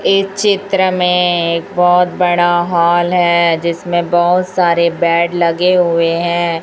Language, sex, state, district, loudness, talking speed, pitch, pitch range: Hindi, female, Chhattisgarh, Raipur, -13 LUFS, 135 wpm, 175 Hz, 170-180 Hz